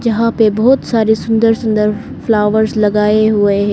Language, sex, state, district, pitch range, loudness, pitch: Hindi, female, Arunachal Pradesh, Lower Dibang Valley, 210-225 Hz, -13 LUFS, 220 Hz